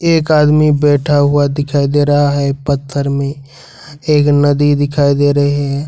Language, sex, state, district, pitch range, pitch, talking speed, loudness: Hindi, male, Jharkhand, Ranchi, 140-145 Hz, 145 Hz, 165 wpm, -12 LUFS